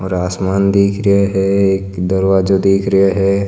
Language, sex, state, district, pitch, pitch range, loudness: Marwari, male, Rajasthan, Nagaur, 95 Hz, 95-100 Hz, -14 LUFS